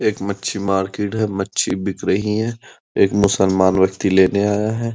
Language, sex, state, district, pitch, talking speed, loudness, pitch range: Hindi, male, Uttar Pradesh, Muzaffarnagar, 100 Hz, 170 wpm, -18 LUFS, 95-105 Hz